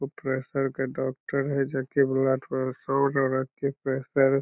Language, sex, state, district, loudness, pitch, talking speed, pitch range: Magahi, male, Bihar, Lakhisarai, -27 LUFS, 135 Hz, 135 wpm, 130-135 Hz